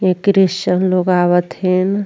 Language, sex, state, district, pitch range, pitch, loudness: Bhojpuri, female, Uttar Pradesh, Ghazipur, 180-190 Hz, 185 Hz, -15 LUFS